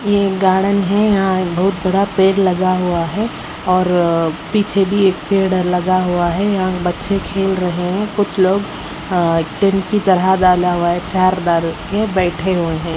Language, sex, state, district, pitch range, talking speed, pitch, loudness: Hindi, female, Haryana, Rohtak, 175-195 Hz, 190 wpm, 185 Hz, -16 LUFS